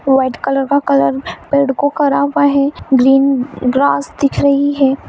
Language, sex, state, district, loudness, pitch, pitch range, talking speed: Hindi, female, Bihar, Saran, -13 LUFS, 275 Hz, 265-280 Hz, 140 wpm